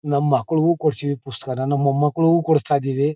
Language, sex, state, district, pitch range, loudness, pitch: Kannada, male, Karnataka, Mysore, 140-155 Hz, -20 LUFS, 145 Hz